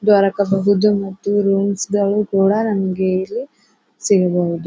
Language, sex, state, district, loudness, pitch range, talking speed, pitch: Kannada, female, Karnataka, Bijapur, -17 LUFS, 190-205 Hz, 105 wpm, 200 Hz